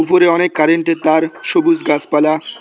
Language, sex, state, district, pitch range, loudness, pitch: Bengali, male, West Bengal, Cooch Behar, 155-180 Hz, -14 LUFS, 165 Hz